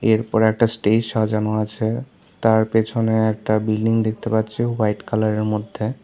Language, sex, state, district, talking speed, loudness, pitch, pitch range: Bengali, male, Tripura, South Tripura, 150 wpm, -20 LUFS, 110 Hz, 110-115 Hz